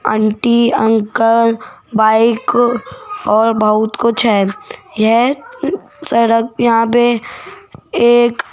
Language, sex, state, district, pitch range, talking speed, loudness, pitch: Hindi, female, Rajasthan, Jaipur, 220-240 Hz, 90 wpm, -13 LUFS, 230 Hz